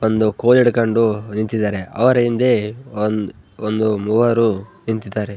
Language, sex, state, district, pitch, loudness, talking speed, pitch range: Kannada, male, Karnataka, Bellary, 110 Hz, -18 LUFS, 100 wpm, 105-115 Hz